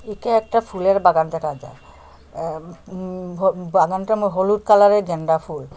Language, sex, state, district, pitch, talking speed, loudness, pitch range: Bengali, female, Assam, Hailakandi, 185 Hz, 145 wpm, -19 LUFS, 160-205 Hz